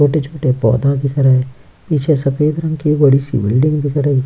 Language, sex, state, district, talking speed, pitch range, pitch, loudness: Hindi, male, Bihar, Kishanganj, 195 wpm, 130-150 Hz, 140 Hz, -15 LUFS